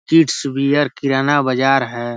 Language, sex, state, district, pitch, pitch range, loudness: Hindi, male, Bihar, East Champaran, 135 Hz, 130-145 Hz, -16 LUFS